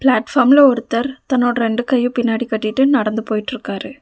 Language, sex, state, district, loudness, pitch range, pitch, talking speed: Tamil, female, Tamil Nadu, Nilgiris, -16 LUFS, 230-265 Hz, 245 Hz, 105 wpm